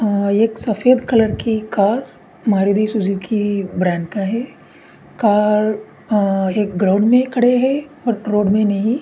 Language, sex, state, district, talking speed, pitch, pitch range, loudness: Hindi, male, Uttarakhand, Tehri Garhwal, 155 wpm, 210 Hz, 200-230 Hz, -17 LUFS